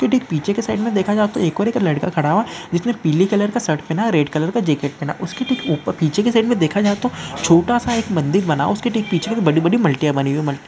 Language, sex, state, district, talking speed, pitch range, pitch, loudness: Hindi, male, West Bengal, Purulia, 285 wpm, 155-220 Hz, 180 Hz, -18 LUFS